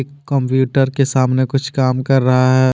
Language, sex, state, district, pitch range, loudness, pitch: Hindi, male, Jharkhand, Deoghar, 130-135 Hz, -15 LUFS, 130 Hz